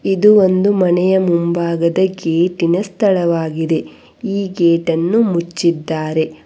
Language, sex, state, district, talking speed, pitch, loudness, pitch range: Kannada, female, Karnataka, Bangalore, 85 wpm, 175 Hz, -15 LUFS, 165-190 Hz